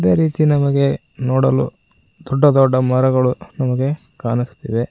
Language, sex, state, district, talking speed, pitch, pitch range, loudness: Kannada, male, Karnataka, Koppal, 110 wpm, 130 Hz, 125-140 Hz, -17 LUFS